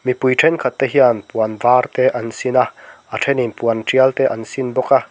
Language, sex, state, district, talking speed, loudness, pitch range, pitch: Mizo, male, Mizoram, Aizawl, 225 wpm, -16 LUFS, 115-130 Hz, 125 Hz